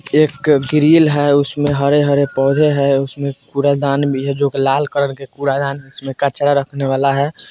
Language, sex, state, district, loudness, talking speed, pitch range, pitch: Bajjika, male, Bihar, Vaishali, -15 LUFS, 185 wpm, 135-145 Hz, 140 Hz